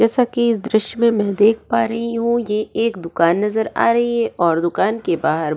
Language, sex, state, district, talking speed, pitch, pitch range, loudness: Hindi, female, Goa, North and South Goa, 235 wpm, 225 Hz, 205-235 Hz, -18 LUFS